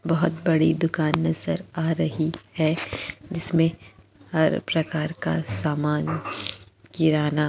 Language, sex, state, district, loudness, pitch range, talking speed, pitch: Hindi, female, Chhattisgarh, Jashpur, -25 LUFS, 105-165 Hz, 105 wpm, 155 Hz